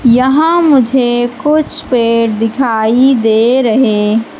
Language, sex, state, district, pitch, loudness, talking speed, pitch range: Hindi, female, Madhya Pradesh, Katni, 245 Hz, -10 LUFS, 95 wpm, 225-265 Hz